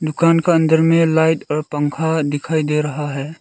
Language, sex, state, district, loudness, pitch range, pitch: Hindi, male, Arunachal Pradesh, Lower Dibang Valley, -17 LUFS, 150-160 Hz, 160 Hz